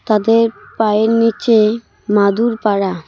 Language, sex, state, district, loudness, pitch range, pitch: Bengali, female, West Bengal, Cooch Behar, -14 LUFS, 210-230 Hz, 220 Hz